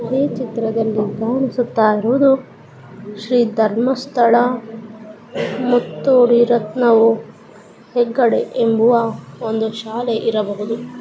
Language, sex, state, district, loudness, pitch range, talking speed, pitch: Kannada, female, Karnataka, Dharwad, -17 LUFS, 220-245 Hz, 75 wpm, 230 Hz